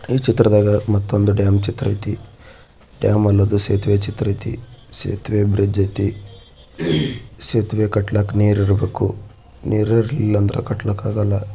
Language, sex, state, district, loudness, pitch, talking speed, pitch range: Kannada, male, Karnataka, Bijapur, -18 LUFS, 105 Hz, 90 wpm, 100-110 Hz